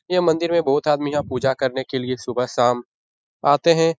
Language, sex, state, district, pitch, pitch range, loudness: Hindi, male, Bihar, Darbhanga, 140 Hz, 130-165 Hz, -20 LUFS